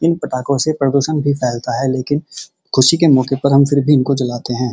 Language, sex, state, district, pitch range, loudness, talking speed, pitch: Hindi, male, Uttar Pradesh, Muzaffarnagar, 130-145 Hz, -15 LUFS, 215 wpm, 140 Hz